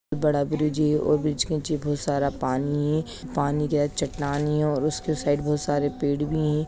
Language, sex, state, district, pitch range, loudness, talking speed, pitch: Hindi, male, Bihar, East Champaran, 145-150 Hz, -25 LUFS, 205 wpm, 150 Hz